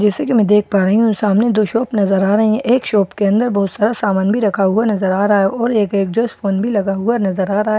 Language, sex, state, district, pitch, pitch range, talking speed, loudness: Hindi, female, Bihar, Katihar, 210 Hz, 195-225 Hz, 290 wpm, -15 LUFS